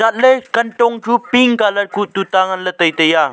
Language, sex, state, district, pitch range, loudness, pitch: Wancho, male, Arunachal Pradesh, Longding, 185-235 Hz, -14 LUFS, 210 Hz